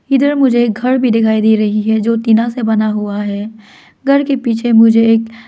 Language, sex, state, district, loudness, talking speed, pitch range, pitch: Hindi, female, Arunachal Pradesh, Lower Dibang Valley, -13 LUFS, 210 wpm, 220-245 Hz, 225 Hz